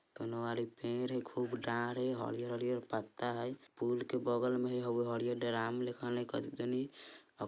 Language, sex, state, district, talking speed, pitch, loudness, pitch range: Bajjika, male, Bihar, Vaishali, 170 wpm, 120 Hz, -38 LUFS, 120-125 Hz